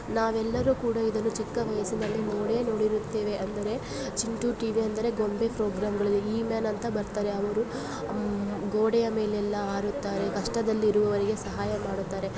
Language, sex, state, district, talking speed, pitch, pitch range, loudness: Kannada, female, Karnataka, Gulbarga, 125 wpm, 215 Hz, 205-225 Hz, -29 LUFS